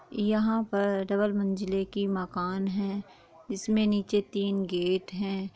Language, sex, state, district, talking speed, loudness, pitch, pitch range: Hindi, female, Bihar, Saran, 130 wpm, -29 LUFS, 200 Hz, 195-205 Hz